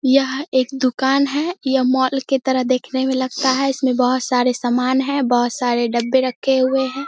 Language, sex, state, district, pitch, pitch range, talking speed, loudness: Hindi, female, Bihar, Samastipur, 260 Hz, 255-270 Hz, 205 wpm, -18 LUFS